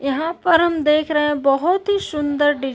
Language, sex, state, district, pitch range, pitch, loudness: Hindi, female, Uttar Pradesh, Deoria, 290-340 Hz, 300 Hz, -18 LUFS